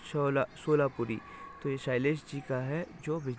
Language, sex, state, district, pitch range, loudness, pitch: Hindi, male, Maharashtra, Solapur, 130-155 Hz, -33 LUFS, 140 Hz